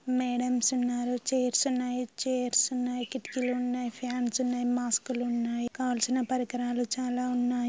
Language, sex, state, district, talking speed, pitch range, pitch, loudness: Telugu, male, Andhra Pradesh, Srikakulam, 125 wpm, 245-255 Hz, 250 Hz, -29 LUFS